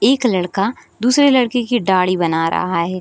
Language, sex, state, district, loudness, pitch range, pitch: Hindi, female, Bihar, Sitamarhi, -16 LUFS, 185-245 Hz, 200 Hz